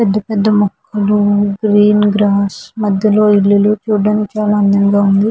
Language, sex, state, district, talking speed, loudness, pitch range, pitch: Telugu, female, Andhra Pradesh, Visakhapatnam, 125 wpm, -12 LUFS, 205-210 Hz, 205 Hz